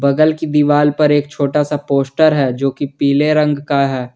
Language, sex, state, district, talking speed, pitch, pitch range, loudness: Hindi, male, Jharkhand, Garhwa, 215 wpm, 145 Hz, 140-150 Hz, -15 LUFS